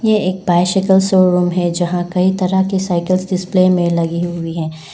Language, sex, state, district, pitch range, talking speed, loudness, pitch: Hindi, female, Arunachal Pradesh, Lower Dibang Valley, 175-190 Hz, 180 wpm, -15 LUFS, 180 Hz